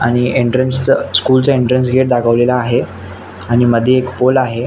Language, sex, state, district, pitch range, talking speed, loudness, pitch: Marathi, male, Maharashtra, Nagpur, 120-130 Hz, 180 wpm, -13 LUFS, 125 Hz